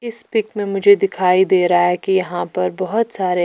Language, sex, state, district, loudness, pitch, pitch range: Hindi, female, Chhattisgarh, Raipur, -17 LUFS, 190 Hz, 180-205 Hz